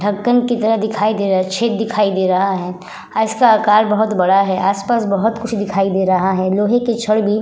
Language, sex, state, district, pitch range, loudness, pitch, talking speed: Hindi, female, Uttar Pradesh, Budaun, 190-220 Hz, -16 LUFS, 210 Hz, 250 wpm